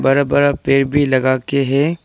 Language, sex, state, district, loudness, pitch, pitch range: Hindi, male, Arunachal Pradesh, Lower Dibang Valley, -15 LUFS, 140 Hz, 135-145 Hz